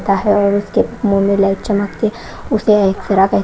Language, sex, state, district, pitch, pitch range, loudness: Hindi, female, Haryana, Rohtak, 200 Hz, 195-215 Hz, -15 LUFS